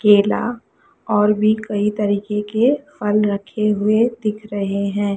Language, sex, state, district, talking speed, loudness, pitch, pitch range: Hindi, female, Chhattisgarh, Sukma, 140 wpm, -19 LUFS, 210 Hz, 205-215 Hz